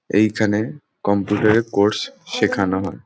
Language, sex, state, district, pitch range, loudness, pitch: Bengali, male, West Bengal, Jhargram, 100-110 Hz, -19 LUFS, 105 Hz